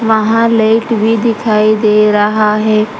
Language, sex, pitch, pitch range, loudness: Hindi, female, 215 Hz, 215-225 Hz, -11 LUFS